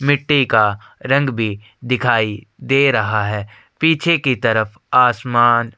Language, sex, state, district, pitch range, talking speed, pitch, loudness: Hindi, male, Chhattisgarh, Sukma, 110-135 Hz, 135 wpm, 120 Hz, -16 LUFS